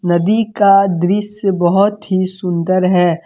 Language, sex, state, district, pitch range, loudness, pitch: Hindi, male, Jharkhand, Deoghar, 180-200 Hz, -14 LUFS, 185 Hz